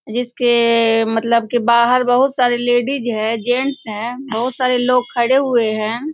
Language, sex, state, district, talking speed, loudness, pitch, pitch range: Hindi, female, Bihar, Sitamarhi, 155 wpm, -16 LUFS, 240 Hz, 230-250 Hz